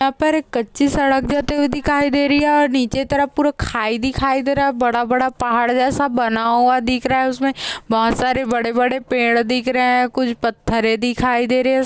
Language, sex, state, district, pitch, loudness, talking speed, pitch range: Hindi, female, Uttarakhand, Tehri Garhwal, 255 Hz, -17 LUFS, 220 wpm, 240-280 Hz